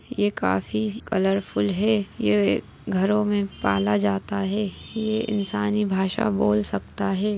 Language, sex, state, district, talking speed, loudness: Hindi, female, Chhattisgarh, Bilaspur, 140 wpm, -24 LUFS